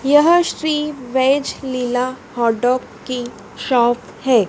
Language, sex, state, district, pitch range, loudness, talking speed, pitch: Hindi, female, Madhya Pradesh, Dhar, 245-280 Hz, -18 LUFS, 120 wpm, 255 Hz